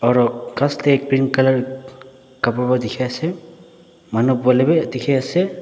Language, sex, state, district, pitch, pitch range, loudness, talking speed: Nagamese, male, Nagaland, Dimapur, 130 Hz, 125-155 Hz, -18 LUFS, 130 wpm